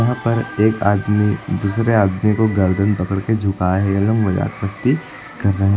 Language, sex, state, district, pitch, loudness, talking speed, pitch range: Hindi, male, Uttar Pradesh, Lucknow, 100 Hz, -18 LUFS, 200 wpm, 100-110 Hz